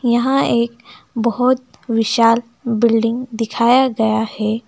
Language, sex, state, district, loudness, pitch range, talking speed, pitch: Hindi, female, West Bengal, Alipurduar, -17 LUFS, 225-240 Hz, 105 wpm, 235 Hz